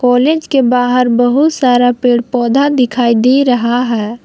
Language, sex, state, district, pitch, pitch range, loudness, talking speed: Hindi, female, Jharkhand, Palamu, 245 Hz, 245-265 Hz, -11 LUFS, 155 wpm